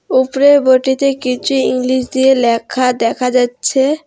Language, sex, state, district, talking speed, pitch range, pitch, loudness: Bengali, female, West Bengal, Alipurduar, 120 wpm, 250-265 Hz, 260 Hz, -13 LUFS